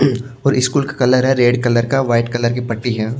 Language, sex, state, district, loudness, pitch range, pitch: Hindi, male, Maharashtra, Washim, -16 LUFS, 120-135 Hz, 125 Hz